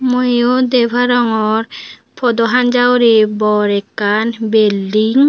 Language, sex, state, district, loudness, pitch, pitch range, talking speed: Chakma, female, Tripura, Unakoti, -13 LUFS, 230 Hz, 215-245 Hz, 90 wpm